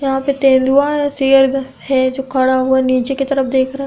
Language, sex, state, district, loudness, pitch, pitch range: Hindi, female, Uttar Pradesh, Budaun, -14 LUFS, 270 Hz, 260-275 Hz